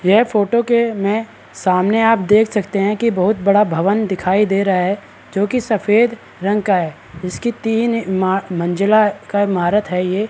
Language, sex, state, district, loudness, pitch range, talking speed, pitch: Hindi, male, Chhattisgarh, Balrampur, -16 LUFS, 190-220 Hz, 190 wpm, 205 Hz